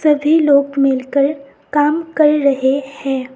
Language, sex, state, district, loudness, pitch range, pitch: Hindi, female, Assam, Sonitpur, -15 LUFS, 275-300 Hz, 280 Hz